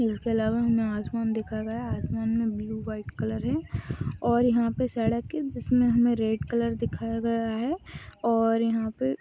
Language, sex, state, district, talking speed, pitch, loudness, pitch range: Hindi, female, Maharashtra, Solapur, 170 wpm, 230 Hz, -27 LUFS, 220-235 Hz